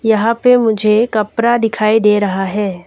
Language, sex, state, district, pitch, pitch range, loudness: Hindi, female, Arunachal Pradesh, Lower Dibang Valley, 215 Hz, 210-230 Hz, -13 LUFS